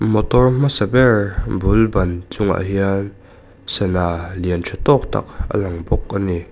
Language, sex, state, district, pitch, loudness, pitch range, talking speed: Mizo, male, Mizoram, Aizawl, 95 Hz, -18 LUFS, 90-105 Hz, 155 wpm